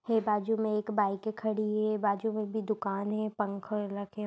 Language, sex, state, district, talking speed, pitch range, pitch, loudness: Hindi, female, Chhattisgarh, Raigarh, 185 wpm, 205-220 Hz, 215 Hz, -32 LUFS